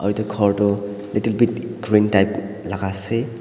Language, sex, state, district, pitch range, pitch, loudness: Nagamese, male, Nagaland, Dimapur, 100-110 Hz, 105 Hz, -20 LUFS